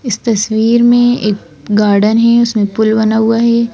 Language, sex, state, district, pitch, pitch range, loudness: Hindi, female, Madhya Pradesh, Bhopal, 220 Hz, 210-235 Hz, -11 LUFS